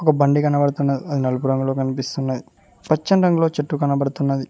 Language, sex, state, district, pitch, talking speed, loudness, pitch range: Telugu, male, Telangana, Mahabubabad, 140 Hz, 145 wpm, -20 LUFS, 135-150 Hz